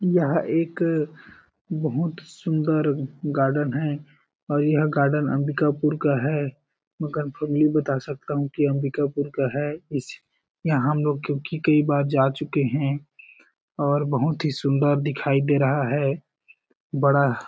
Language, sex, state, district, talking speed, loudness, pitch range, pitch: Hindi, male, Chhattisgarh, Balrampur, 145 wpm, -24 LUFS, 140-150 Hz, 145 Hz